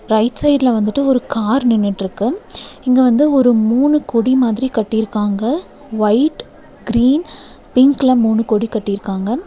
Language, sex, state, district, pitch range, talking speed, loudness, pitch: Tamil, female, Tamil Nadu, Nilgiris, 220-270 Hz, 120 wpm, -15 LUFS, 240 Hz